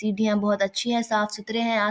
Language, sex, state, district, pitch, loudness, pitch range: Maithili, female, Bihar, Samastipur, 210 Hz, -24 LUFS, 210-225 Hz